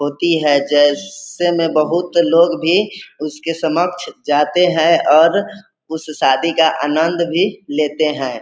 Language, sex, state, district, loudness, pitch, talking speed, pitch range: Hindi, male, Bihar, East Champaran, -15 LUFS, 165 Hz, 140 wpm, 150-175 Hz